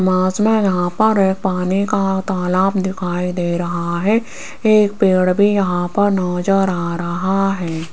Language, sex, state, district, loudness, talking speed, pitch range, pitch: Hindi, female, Rajasthan, Jaipur, -17 LUFS, 160 wpm, 180-200 Hz, 190 Hz